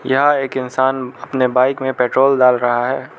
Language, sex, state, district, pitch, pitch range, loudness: Hindi, male, Arunachal Pradesh, Lower Dibang Valley, 130 Hz, 125-135 Hz, -16 LUFS